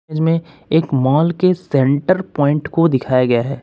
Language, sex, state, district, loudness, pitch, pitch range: Hindi, male, Uttar Pradesh, Lucknow, -16 LUFS, 150 Hz, 135-165 Hz